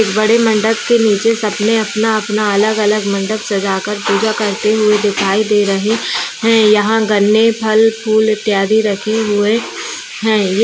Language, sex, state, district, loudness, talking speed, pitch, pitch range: Hindi, female, Bihar, East Champaran, -13 LUFS, 140 wpm, 215 Hz, 210-220 Hz